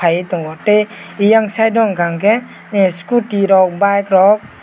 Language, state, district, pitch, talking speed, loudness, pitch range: Kokborok, Tripura, West Tripura, 200 Hz, 155 wpm, -14 LUFS, 185-215 Hz